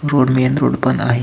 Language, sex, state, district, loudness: Marathi, male, Maharashtra, Solapur, -15 LUFS